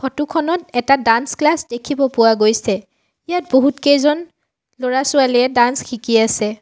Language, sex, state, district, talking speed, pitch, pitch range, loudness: Assamese, female, Assam, Sonitpur, 125 wpm, 260 Hz, 235-295 Hz, -16 LUFS